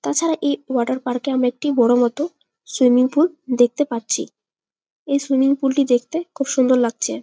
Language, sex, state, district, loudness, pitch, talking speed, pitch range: Bengali, female, West Bengal, Jalpaiguri, -19 LUFS, 265 Hz, 175 wpm, 245-290 Hz